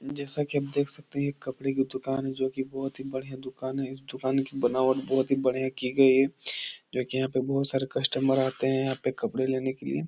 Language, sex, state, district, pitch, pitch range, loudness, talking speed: Hindi, male, Bihar, Jahanabad, 135 Hz, 130-135 Hz, -28 LUFS, 245 wpm